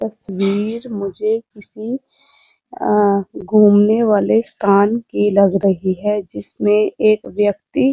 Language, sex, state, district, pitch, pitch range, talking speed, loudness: Hindi, female, Uttar Pradesh, Muzaffarnagar, 210 Hz, 200-215 Hz, 115 wpm, -16 LUFS